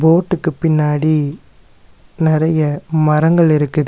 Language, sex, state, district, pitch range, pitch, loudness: Tamil, male, Tamil Nadu, Nilgiris, 150-165 Hz, 155 Hz, -15 LUFS